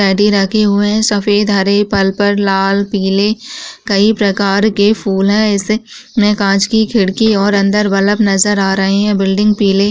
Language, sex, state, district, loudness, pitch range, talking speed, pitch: Hindi, female, Bihar, Begusarai, -12 LUFS, 195-210 Hz, 165 wpm, 205 Hz